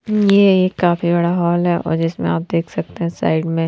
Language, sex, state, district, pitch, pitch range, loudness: Hindi, female, Haryana, Rohtak, 170 Hz, 165-180 Hz, -17 LUFS